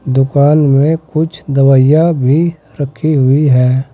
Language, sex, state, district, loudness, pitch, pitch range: Hindi, male, Uttar Pradesh, Saharanpur, -11 LUFS, 145 Hz, 135-155 Hz